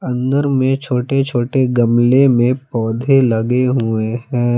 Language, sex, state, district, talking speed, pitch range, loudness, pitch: Hindi, male, Jharkhand, Palamu, 130 wpm, 120-135 Hz, -15 LUFS, 125 Hz